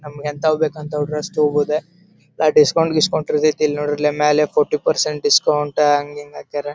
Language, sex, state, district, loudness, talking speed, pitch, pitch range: Kannada, male, Karnataka, Dharwad, -18 LUFS, 175 wpm, 150 Hz, 150-155 Hz